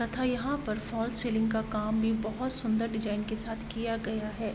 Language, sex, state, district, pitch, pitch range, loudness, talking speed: Hindi, female, Uttar Pradesh, Varanasi, 225 Hz, 220-230 Hz, -31 LUFS, 210 wpm